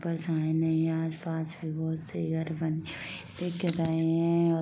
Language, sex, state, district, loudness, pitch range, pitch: Hindi, female, Uttar Pradesh, Muzaffarnagar, -30 LUFS, 160-165 Hz, 160 Hz